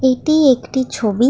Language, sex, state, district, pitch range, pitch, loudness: Bengali, female, West Bengal, Malda, 250-270 Hz, 260 Hz, -15 LUFS